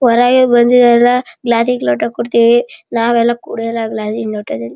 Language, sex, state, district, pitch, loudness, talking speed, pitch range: Kannada, male, Karnataka, Shimoga, 235 Hz, -13 LUFS, 125 wpm, 215-240 Hz